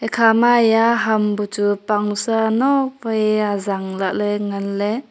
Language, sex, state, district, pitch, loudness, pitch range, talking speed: Wancho, female, Arunachal Pradesh, Longding, 215 Hz, -18 LUFS, 205-225 Hz, 175 wpm